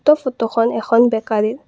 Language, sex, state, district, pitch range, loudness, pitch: Assamese, female, Assam, Kamrup Metropolitan, 225-260 Hz, -17 LUFS, 230 Hz